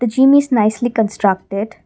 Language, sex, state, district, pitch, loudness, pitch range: English, female, Assam, Kamrup Metropolitan, 225 Hz, -15 LUFS, 205-245 Hz